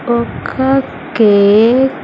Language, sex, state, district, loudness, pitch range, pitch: Telugu, female, Andhra Pradesh, Sri Satya Sai, -12 LUFS, 215-265 Hz, 235 Hz